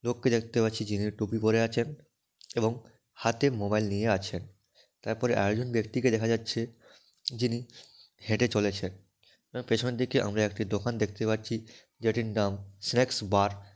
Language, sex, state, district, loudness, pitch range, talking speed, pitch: Bengali, male, West Bengal, Dakshin Dinajpur, -30 LUFS, 105-120 Hz, 130 wpm, 115 Hz